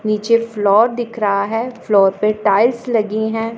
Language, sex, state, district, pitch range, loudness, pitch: Hindi, female, Punjab, Pathankot, 205-230 Hz, -16 LUFS, 220 Hz